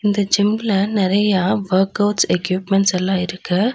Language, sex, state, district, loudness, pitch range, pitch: Tamil, female, Tamil Nadu, Nilgiris, -18 LUFS, 185-205 Hz, 195 Hz